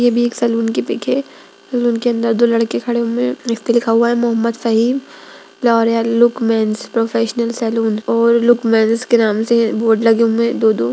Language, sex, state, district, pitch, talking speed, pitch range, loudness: Magahi, female, Bihar, Gaya, 230 Hz, 145 wpm, 225-235 Hz, -15 LUFS